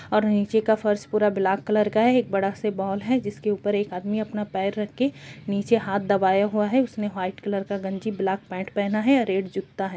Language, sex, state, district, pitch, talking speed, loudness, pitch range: Hindi, female, Chhattisgarh, Kabirdham, 205 Hz, 235 wpm, -24 LUFS, 195-215 Hz